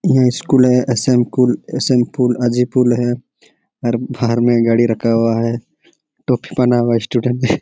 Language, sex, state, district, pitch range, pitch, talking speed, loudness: Hindi, male, Jharkhand, Sahebganj, 120-125 Hz, 120 Hz, 175 wpm, -15 LUFS